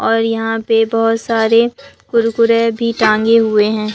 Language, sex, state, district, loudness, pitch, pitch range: Hindi, female, Bihar, Katihar, -14 LUFS, 225 Hz, 225-230 Hz